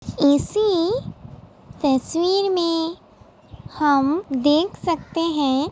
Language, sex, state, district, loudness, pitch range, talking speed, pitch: Hindi, female, Uttar Pradesh, Muzaffarnagar, -20 LUFS, 285-355 Hz, 75 wpm, 330 Hz